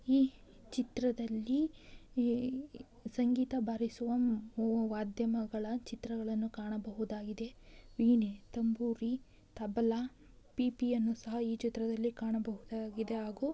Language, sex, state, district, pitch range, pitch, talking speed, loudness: Kannada, female, Karnataka, Belgaum, 225-245 Hz, 230 Hz, 70 wpm, -36 LUFS